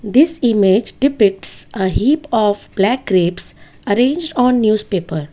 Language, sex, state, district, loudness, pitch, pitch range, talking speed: English, female, Gujarat, Valsad, -16 LUFS, 215 Hz, 195-255 Hz, 125 wpm